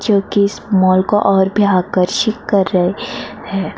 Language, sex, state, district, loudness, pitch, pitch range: Hindi, female, Uttar Pradesh, Varanasi, -15 LUFS, 195 Hz, 185-205 Hz